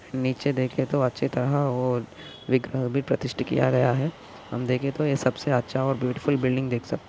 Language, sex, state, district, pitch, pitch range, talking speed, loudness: Hindi, male, Maharashtra, Aurangabad, 130 Hz, 125-140 Hz, 195 wpm, -25 LUFS